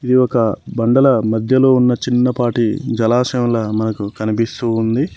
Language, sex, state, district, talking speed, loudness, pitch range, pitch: Telugu, male, Telangana, Mahabubabad, 115 wpm, -16 LUFS, 110-125 Hz, 120 Hz